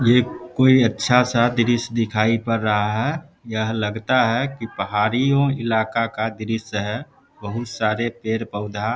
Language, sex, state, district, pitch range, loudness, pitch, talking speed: Hindi, male, Bihar, Samastipur, 110-120 Hz, -21 LUFS, 115 Hz, 145 wpm